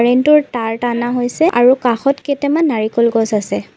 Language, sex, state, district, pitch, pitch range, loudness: Assamese, female, Assam, Sonitpur, 245 Hz, 235-280 Hz, -15 LUFS